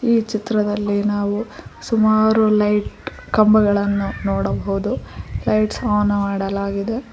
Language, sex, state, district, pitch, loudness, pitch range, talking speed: Kannada, female, Karnataka, Koppal, 205 Hz, -19 LUFS, 200-215 Hz, 85 wpm